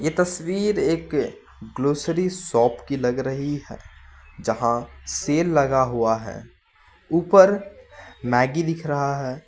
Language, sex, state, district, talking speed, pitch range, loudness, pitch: Hindi, male, West Bengal, Alipurduar, 115 wpm, 120-165 Hz, -22 LUFS, 140 Hz